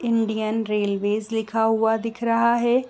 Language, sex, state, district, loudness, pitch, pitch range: Hindi, female, Chhattisgarh, Raigarh, -22 LUFS, 225 Hz, 215-230 Hz